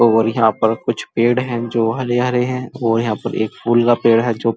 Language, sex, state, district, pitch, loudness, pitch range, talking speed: Hindi, male, Uttar Pradesh, Muzaffarnagar, 115 Hz, -17 LUFS, 115-120 Hz, 235 wpm